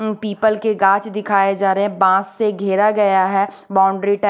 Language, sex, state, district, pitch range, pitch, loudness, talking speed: Hindi, female, Odisha, Khordha, 195-210 Hz, 200 Hz, -17 LUFS, 195 wpm